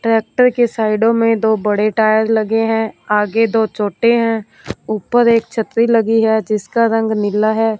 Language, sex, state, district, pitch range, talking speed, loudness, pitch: Hindi, female, Punjab, Fazilka, 215-230 Hz, 170 wpm, -15 LUFS, 225 Hz